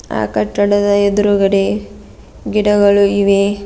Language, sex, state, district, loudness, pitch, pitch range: Kannada, female, Karnataka, Bidar, -13 LUFS, 200 Hz, 195-205 Hz